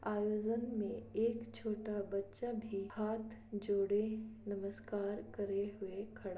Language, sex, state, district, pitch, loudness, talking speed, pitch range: Hindi, female, Bihar, Kishanganj, 210 Hz, -40 LUFS, 115 wpm, 200-220 Hz